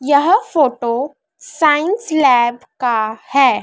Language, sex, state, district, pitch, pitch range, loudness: Hindi, female, Madhya Pradesh, Dhar, 275 Hz, 240-305 Hz, -15 LUFS